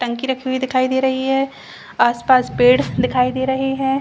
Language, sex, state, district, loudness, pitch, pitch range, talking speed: Hindi, female, Chhattisgarh, Rajnandgaon, -17 LUFS, 260 Hz, 250-265 Hz, 195 wpm